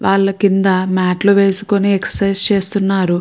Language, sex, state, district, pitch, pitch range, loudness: Telugu, female, Andhra Pradesh, Guntur, 195 Hz, 190-200 Hz, -14 LUFS